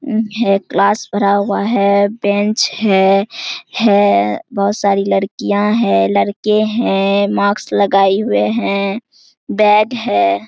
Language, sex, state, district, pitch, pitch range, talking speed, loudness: Hindi, female, Bihar, Araria, 200 Hz, 195-215 Hz, 115 wpm, -14 LUFS